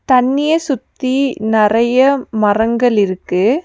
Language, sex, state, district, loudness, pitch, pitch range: Tamil, female, Tamil Nadu, Nilgiris, -14 LUFS, 245 Hz, 215-270 Hz